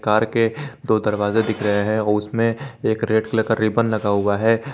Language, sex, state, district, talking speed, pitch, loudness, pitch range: Hindi, male, Jharkhand, Garhwa, 215 wpm, 110 Hz, -20 LUFS, 105-115 Hz